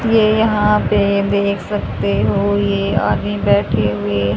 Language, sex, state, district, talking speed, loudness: Hindi, female, Haryana, Charkhi Dadri, 135 wpm, -16 LUFS